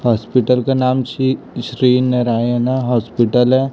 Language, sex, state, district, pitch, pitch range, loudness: Hindi, male, Chhattisgarh, Raipur, 125 Hz, 120-130 Hz, -16 LUFS